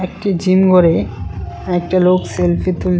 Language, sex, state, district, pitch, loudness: Bengali, male, West Bengal, Cooch Behar, 165 Hz, -15 LUFS